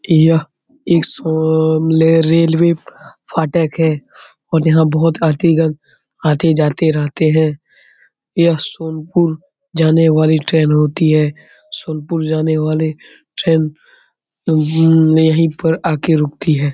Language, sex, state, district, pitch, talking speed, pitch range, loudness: Hindi, male, Bihar, Saran, 160 Hz, 100 wpm, 155-165 Hz, -14 LUFS